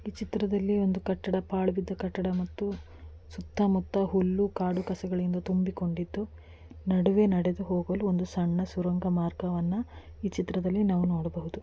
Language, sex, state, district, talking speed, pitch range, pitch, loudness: Kannada, female, Karnataka, Dakshina Kannada, 130 wpm, 180-195 Hz, 185 Hz, -29 LUFS